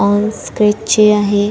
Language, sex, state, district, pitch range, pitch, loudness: Marathi, female, Maharashtra, Chandrapur, 205-215 Hz, 210 Hz, -13 LUFS